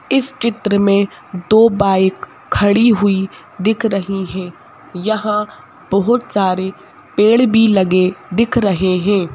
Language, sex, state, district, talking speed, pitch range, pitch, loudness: Hindi, female, Madhya Pradesh, Bhopal, 120 wpm, 190-225 Hz, 200 Hz, -15 LUFS